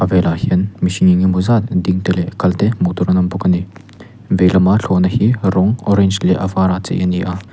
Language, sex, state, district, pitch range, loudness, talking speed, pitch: Mizo, male, Mizoram, Aizawl, 90-100 Hz, -15 LUFS, 240 wpm, 95 Hz